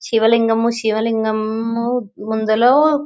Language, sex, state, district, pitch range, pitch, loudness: Telugu, female, Telangana, Nalgonda, 220-235 Hz, 225 Hz, -17 LUFS